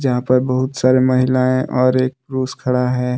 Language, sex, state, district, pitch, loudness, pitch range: Hindi, male, Jharkhand, Deoghar, 130 Hz, -17 LUFS, 125-130 Hz